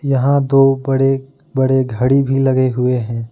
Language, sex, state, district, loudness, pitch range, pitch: Hindi, male, Jharkhand, Ranchi, -15 LUFS, 130-135 Hz, 135 Hz